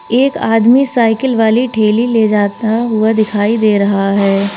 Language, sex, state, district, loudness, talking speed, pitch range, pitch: Hindi, female, Uttar Pradesh, Lalitpur, -12 LUFS, 155 wpm, 210-235 Hz, 220 Hz